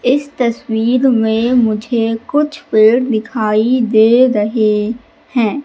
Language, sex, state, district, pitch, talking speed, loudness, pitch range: Hindi, female, Madhya Pradesh, Katni, 230 Hz, 105 wpm, -14 LUFS, 220-250 Hz